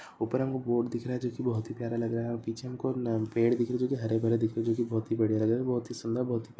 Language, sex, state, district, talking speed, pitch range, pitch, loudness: Hindi, male, Andhra Pradesh, Anantapur, 355 wpm, 115-125 Hz, 115 Hz, -31 LUFS